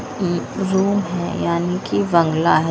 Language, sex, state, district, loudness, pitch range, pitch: Hindi, female, Punjab, Kapurthala, -19 LUFS, 170-195 Hz, 180 Hz